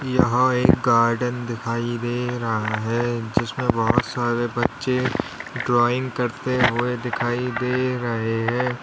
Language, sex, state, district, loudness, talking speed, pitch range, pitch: Hindi, male, Uttar Pradesh, Lalitpur, -22 LUFS, 120 wpm, 115-125 Hz, 120 Hz